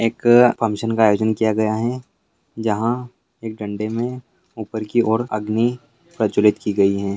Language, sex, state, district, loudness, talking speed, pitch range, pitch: Hindi, male, Bihar, Gaya, -19 LUFS, 160 wpm, 110-120 Hz, 110 Hz